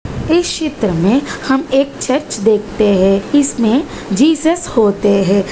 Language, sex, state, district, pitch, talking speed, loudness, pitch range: Hindi, female, Uttar Pradesh, Ghazipur, 235 Hz, 130 wpm, -14 LUFS, 205-285 Hz